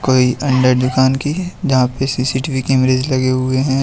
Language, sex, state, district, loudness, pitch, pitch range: Hindi, male, Jharkhand, Deoghar, -15 LUFS, 130 Hz, 130-135 Hz